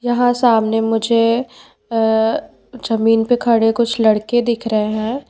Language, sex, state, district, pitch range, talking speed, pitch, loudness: Hindi, female, Bihar, Patna, 225-245 Hz, 135 wpm, 230 Hz, -16 LUFS